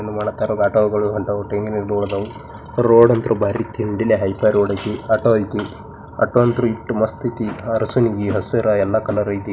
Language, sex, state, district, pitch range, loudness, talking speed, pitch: Kannada, male, Karnataka, Bijapur, 105-115 Hz, -18 LUFS, 95 wpm, 105 Hz